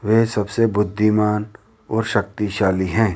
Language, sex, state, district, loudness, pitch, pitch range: Hindi, male, Rajasthan, Jaipur, -20 LUFS, 105 Hz, 105-110 Hz